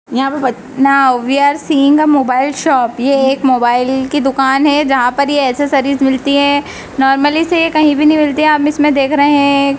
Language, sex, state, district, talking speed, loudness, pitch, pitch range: Hindi, female, Madhya Pradesh, Dhar, 220 wpm, -12 LUFS, 280 Hz, 265-290 Hz